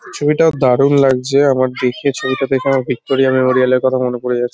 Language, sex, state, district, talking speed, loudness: Bengali, female, West Bengal, Kolkata, 185 wpm, -14 LUFS